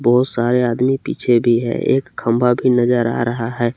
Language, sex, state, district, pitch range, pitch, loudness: Hindi, male, Jharkhand, Palamu, 120-125 Hz, 120 Hz, -17 LUFS